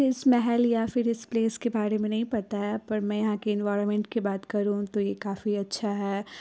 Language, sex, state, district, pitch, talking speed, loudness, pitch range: Hindi, female, Bihar, Purnia, 210 Hz, 235 wpm, -27 LUFS, 205-230 Hz